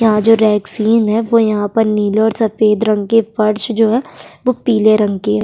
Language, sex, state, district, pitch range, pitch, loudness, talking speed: Hindi, female, Bihar, Kishanganj, 210-225 Hz, 220 Hz, -14 LUFS, 220 wpm